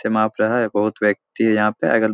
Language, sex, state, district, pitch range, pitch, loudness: Hindi, male, Bihar, Supaul, 105-110 Hz, 110 Hz, -19 LUFS